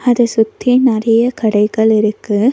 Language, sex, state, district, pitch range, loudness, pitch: Tamil, female, Tamil Nadu, Nilgiris, 215-245 Hz, -13 LUFS, 225 Hz